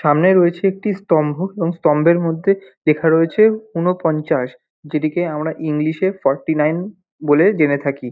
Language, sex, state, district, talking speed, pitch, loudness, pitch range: Bengali, male, West Bengal, North 24 Parganas, 140 wpm, 165 Hz, -17 LUFS, 150-185 Hz